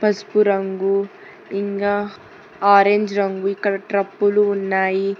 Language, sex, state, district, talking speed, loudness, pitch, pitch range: Telugu, female, Telangana, Hyderabad, 90 wpm, -19 LUFS, 200 Hz, 195-205 Hz